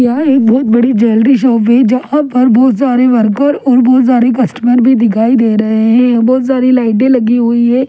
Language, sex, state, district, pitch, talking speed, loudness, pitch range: Hindi, female, Delhi, New Delhi, 250 Hz, 205 wpm, -9 LUFS, 235-255 Hz